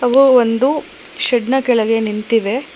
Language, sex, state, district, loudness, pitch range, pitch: Kannada, female, Karnataka, Bangalore, -14 LUFS, 225-265 Hz, 245 Hz